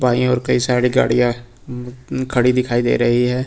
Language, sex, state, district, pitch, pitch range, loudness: Hindi, male, Uttar Pradesh, Lucknow, 125 Hz, 120-125 Hz, -17 LUFS